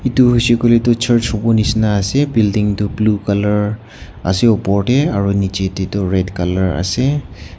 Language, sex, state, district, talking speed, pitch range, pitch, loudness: Nagamese, male, Nagaland, Kohima, 160 wpm, 95-120 Hz, 105 Hz, -15 LUFS